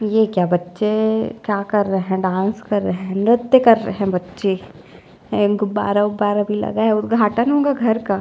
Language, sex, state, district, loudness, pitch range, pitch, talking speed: Hindi, female, Chhattisgarh, Jashpur, -18 LUFS, 195-220 Hz, 210 Hz, 210 wpm